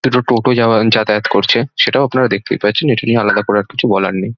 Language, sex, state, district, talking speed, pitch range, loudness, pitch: Bengali, male, West Bengal, Dakshin Dinajpur, 245 wpm, 105-125 Hz, -13 LUFS, 115 Hz